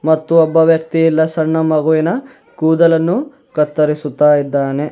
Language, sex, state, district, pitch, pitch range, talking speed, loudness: Kannada, male, Karnataka, Bidar, 160 Hz, 150-165 Hz, 110 wpm, -14 LUFS